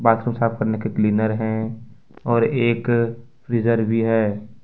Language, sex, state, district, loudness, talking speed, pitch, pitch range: Hindi, male, Jharkhand, Ranchi, -21 LUFS, 170 wpm, 115 Hz, 110-115 Hz